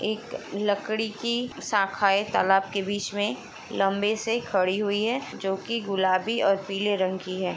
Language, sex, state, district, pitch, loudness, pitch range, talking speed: Hindi, female, Chhattisgarh, Sukma, 200 Hz, -26 LUFS, 195-215 Hz, 175 wpm